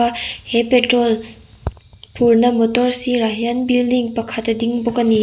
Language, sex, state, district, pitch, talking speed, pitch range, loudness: Mizo, female, Mizoram, Aizawl, 235 Hz, 160 wpm, 225-245 Hz, -17 LUFS